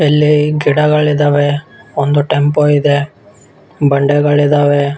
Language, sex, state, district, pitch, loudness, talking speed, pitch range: Kannada, male, Karnataka, Bellary, 145 Hz, -12 LUFS, 85 wpm, 145-150 Hz